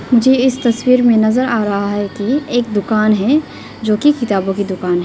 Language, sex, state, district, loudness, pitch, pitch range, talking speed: Hindi, female, Arunachal Pradesh, Lower Dibang Valley, -14 LUFS, 225 Hz, 205-250 Hz, 215 wpm